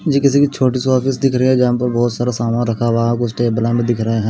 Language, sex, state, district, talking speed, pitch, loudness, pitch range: Hindi, male, Odisha, Malkangiri, 305 wpm, 120 Hz, -16 LUFS, 115-130 Hz